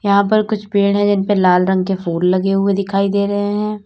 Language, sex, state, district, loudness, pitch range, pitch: Hindi, female, Uttar Pradesh, Lalitpur, -16 LUFS, 195-205 Hz, 200 Hz